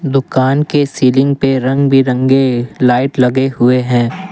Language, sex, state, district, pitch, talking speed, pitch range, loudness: Hindi, male, Assam, Kamrup Metropolitan, 130 Hz, 140 wpm, 125-140 Hz, -12 LUFS